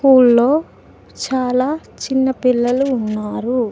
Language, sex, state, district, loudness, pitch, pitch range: Telugu, female, Telangana, Mahabubabad, -16 LUFS, 255 Hz, 245-265 Hz